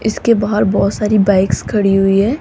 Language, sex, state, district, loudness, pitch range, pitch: Hindi, female, Rajasthan, Jaipur, -14 LUFS, 195-215 Hz, 205 Hz